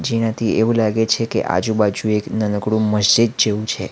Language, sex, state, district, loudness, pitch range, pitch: Gujarati, male, Gujarat, Valsad, -18 LUFS, 105-115 Hz, 110 Hz